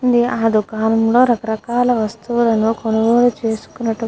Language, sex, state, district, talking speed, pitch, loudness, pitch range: Telugu, female, Andhra Pradesh, Guntur, 115 wpm, 225 Hz, -16 LUFS, 220-240 Hz